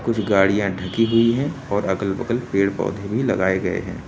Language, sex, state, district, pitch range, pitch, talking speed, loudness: Hindi, male, Uttar Pradesh, Lucknow, 95-115 Hz, 100 Hz, 205 wpm, -21 LUFS